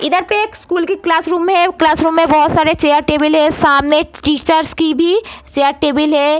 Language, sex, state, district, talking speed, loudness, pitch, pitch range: Hindi, female, Bihar, Darbhanga, 205 wpm, -13 LUFS, 320 Hz, 300-345 Hz